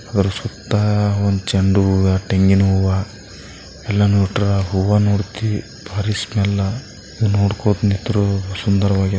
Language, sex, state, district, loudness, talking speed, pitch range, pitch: Kannada, male, Karnataka, Bijapur, -18 LUFS, 85 wpm, 95-105 Hz, 100 Hz